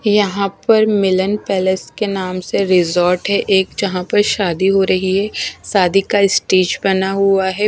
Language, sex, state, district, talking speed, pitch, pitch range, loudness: Hindi, female, Punjab, Kapurthala, 170 wpm, 195 Hz, 185-200 Hz, -15 LUFS